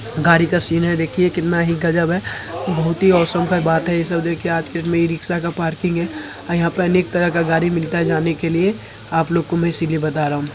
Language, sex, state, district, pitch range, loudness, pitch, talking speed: Hindi, male, Uttar Pradesh, Hamirpur, 165-175 Hz, -18 LUFS, 170 Hz, 215 wpm